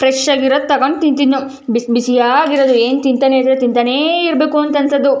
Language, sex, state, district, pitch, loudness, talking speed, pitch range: Kannada, female, Karnataka, Chamarajanagar, 270 Hz, -13 LUFS, 140 wpm, 260-290 Hz